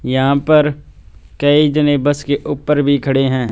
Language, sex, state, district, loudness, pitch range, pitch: Hindi, male, Punjab, Fazilka, -14 LUFS, 130-150 Hz, 140 Hz